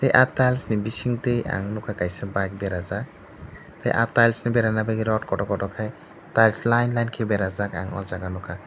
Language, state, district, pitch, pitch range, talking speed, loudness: Kokborok, Tripura, Dhalai, 110 Hz, 100-120 Hz, 200 wpm, -24 LUFS